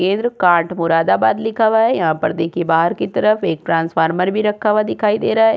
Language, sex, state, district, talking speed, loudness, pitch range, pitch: Hindi, female, Uttar Pradesh, Jyotiba Phule Nagar, 215 wpm, -16 LUFS, 165-215 Hz, 180 Hz